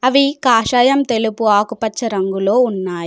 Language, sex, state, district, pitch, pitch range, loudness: Telugu, female, Telangana, Komaram Bheem, 225 Hz, 205-250 Hz, -15 LUFS